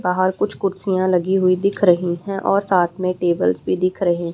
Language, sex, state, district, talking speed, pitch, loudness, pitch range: Hindi, female, Haryana, Rohtak, 205 wpm, 185 Hz, -19 LUFS, 175-190 Hz